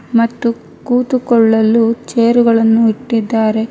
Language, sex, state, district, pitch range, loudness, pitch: Kannada, female, Karnataka, Bangalore, 225-235 Hz, -13 LUFS, 230 Hz